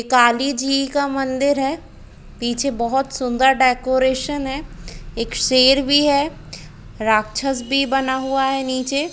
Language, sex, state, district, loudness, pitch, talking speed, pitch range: Hindi, female, Jharkhand, Jamtara, -18 LUFS, 270 Hz, 130 wpm, 255-275 Hz